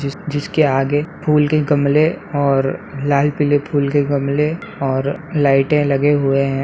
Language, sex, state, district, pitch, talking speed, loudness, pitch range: Hindi, male, Bihar, Samastipur, 145 Hz, 155 wpm, -17 LUFS, 140-150 Hz